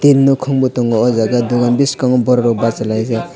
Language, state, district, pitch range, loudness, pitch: Kokborok, Tripura, West Tripura, 115-130 Hz, -14 LUFS, 120 Hz